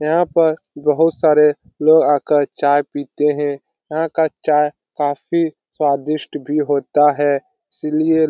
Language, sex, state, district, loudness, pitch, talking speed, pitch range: Hindi, male, Bihar, Lakhisarai, -17 LUFS, 150 Hz, 135 wpm, 145-160 Hz